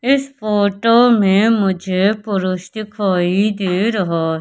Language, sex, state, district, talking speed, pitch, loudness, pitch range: Hindi, male, Madhya Pradesh, Katni, 110 wpm, 200 Hz, -16 LUFS, 185-220 Hz